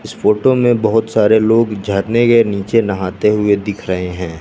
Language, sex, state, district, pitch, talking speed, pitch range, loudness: Hindi, male, Bihar, West Champaran, 105 Hz, 190 wpm, 100-115 Hz, -14 LUFS